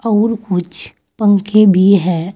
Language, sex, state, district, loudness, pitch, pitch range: Hindi, female, Uttar Pradesh, Saharanpur, -13 LUFS, 200 Hz, 180-215 Hz